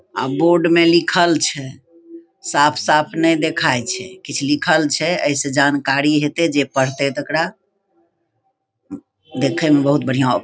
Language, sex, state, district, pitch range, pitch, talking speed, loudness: Maithili, female, Bihar, Begusarai, 140-170 Hz, 150 Hz, 140 wpm, -17 LUFS